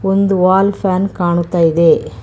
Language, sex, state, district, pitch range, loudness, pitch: Kannada, female, Karnataka, Bangalore, 175-195 Hz, -13 LUFS, 185 Hz